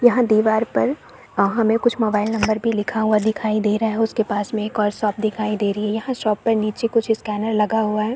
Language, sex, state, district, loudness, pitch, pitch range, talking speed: Hindi, female, Chhattisgarh, Korba, -20 LUFS, 215 Hz, 210-225 Hz, 250 wpm